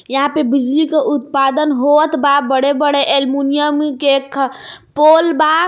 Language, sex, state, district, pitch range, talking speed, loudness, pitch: Bhojpuri, female, Jharkhand, Palamu, 275-305 Hz, 150 wpm, -14 LUFS, 285 Hz